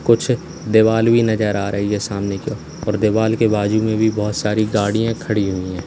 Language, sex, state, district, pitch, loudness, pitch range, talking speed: Hindi, male, Uttar Pradesh, Saharanpur, 110 Hz, -18 LUFS, 105-110 Hz, 225 wpm